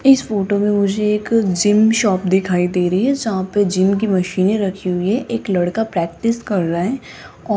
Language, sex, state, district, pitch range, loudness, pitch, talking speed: Hindi, female, Rajasthan, Jaipur, 185-220 Hz, -17 LUFS, 200 Hz, 200 wpm